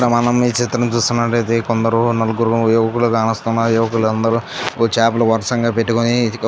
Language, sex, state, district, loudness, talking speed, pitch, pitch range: Telugu, male, Andhra Pradesh, Chittoor, -16 LUFS, 130 wpm, 115 Hz, 115-120 Hz